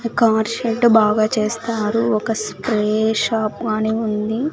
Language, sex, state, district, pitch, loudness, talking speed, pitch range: Telugu, female, Andhra Pradesh, Sri Satya Sai, 220 Hz, -18 LUFS, 120 wpm, 215-230 Hz